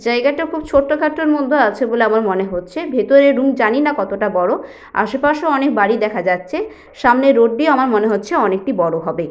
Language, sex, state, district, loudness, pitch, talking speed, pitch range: Bengali, female, West Bengal, Jhargram, -16 LUFS, 240 Hz, 185 wpm, 205-285 Hz